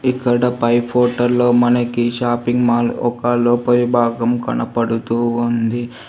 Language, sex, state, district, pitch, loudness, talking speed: Telugu, female, Telangana, Hyderabad, 120 Hz, -16 LUFS, 110 wpm